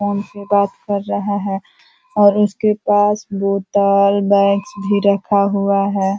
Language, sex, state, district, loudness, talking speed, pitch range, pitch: Hindi, female, Uttar Pradesh, Ghazipur, -16 LUFS, 145 wpm, 200-205 Hz, 200 Hz